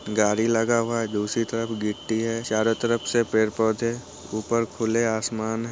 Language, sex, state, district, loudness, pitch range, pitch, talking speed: Hindi, male, Bihar, Muzaffarpur, -24 LUFS, 110-115 Hz, 115 Hz, 190 wpm